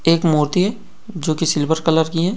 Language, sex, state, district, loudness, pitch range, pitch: Hindi, male, Maharashtra, Solapur, -18 LUFS, 160-180 Hz, 165 Hz